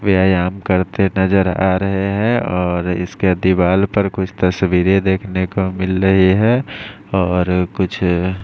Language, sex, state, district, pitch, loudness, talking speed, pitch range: Hindi, male, Maharashtra, Mumbai Suburban, 95 Hz, -16 LUFS, 140 wpm, 90-95 Hz